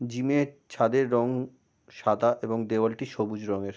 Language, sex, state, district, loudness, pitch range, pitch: Bengali, male, West Bengal, Jalpaiguri, -27 LUFS, 110-130 Hz, 120 Hz